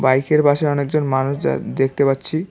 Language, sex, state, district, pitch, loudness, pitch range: Bengali, male, West Bengal, Cooch Behar, 140 Hz, -18 LUFS, 135-150 Hz